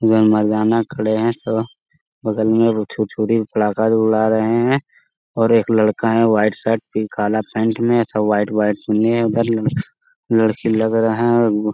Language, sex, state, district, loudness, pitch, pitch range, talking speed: Hindi, male, Bihar, Jamui, -17 LUFS, 110 Hz, 110-115 Hz, 205 wpm